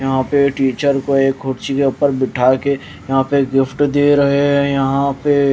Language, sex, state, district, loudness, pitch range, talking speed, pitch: Hindi, male, Bihar, West Champaran, -15 LUFS, 135-140 Hz, 185 wpm, 140 Hz